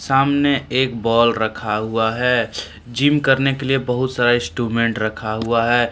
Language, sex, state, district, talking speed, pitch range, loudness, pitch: Hindi, male, Jharkhand, Deoghar, 160 wpm, 115-135 Hz, -18 LUFS, 120 Hz